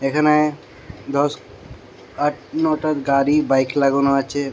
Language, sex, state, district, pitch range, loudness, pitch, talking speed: Bengali, male, West Bengal, Jhargram, 140-150 Hz, -19 LUFS, 145 Hz, 105 wpm